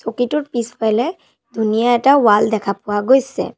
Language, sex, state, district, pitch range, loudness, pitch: Assamese, female, Assam, Sonitpur, 220-260 Hz, -16 LUFS, 230 Hz